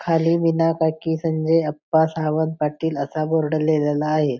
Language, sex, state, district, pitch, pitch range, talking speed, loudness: Marathi, female, Maharashtra, Pune, 160 Hz, 155-160 Hz, 150 wpm, -21 LUFS